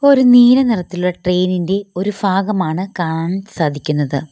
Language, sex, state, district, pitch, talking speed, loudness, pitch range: Malayalam, female, Kerala, Kollam, 185 Hz, 125 wpm, -15 LUFS, 165-205 Hz